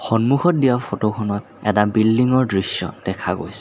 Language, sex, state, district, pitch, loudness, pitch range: Assamese, male, Assam, Kamrup Metropolitan, 110 Hz, -19 LUFS, 105-130 Hz